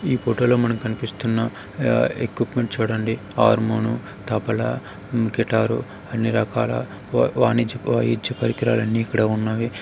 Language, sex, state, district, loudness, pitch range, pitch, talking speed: Telugu, male, Andhra Pradesh, Guntur, -22 LUFS, 110-120 Hz, 115 Hz, 110 wpm